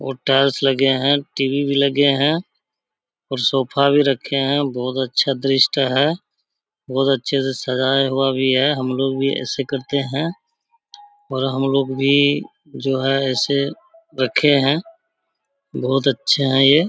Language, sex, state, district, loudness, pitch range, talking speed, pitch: Hindi, male, Bihar, Supaul, -18 LUFS, 135-145 Hz, 155 wpm, 135 Hz